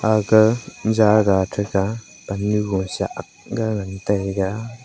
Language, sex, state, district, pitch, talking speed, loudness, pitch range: Wancho, male, Arunachal Pradesh, Longding, 105 Hz, 100 wpm, -20 LUFS, 100-110 Hz